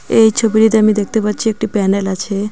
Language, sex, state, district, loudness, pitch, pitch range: Bengali, female, West Bengal, Cooch Behar, -14 LUFS, 215 Hz, 200-220 Hz